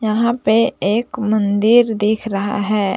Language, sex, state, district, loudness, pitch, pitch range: Hindi, female, Jharkhand, Palamu, -16 LUFS, 215 Hz, 205-225 Hz